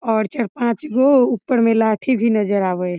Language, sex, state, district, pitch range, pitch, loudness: Maithili, female, Bihar, Samastipur, 215-250 Hz, 230 Hz, -17 LUFS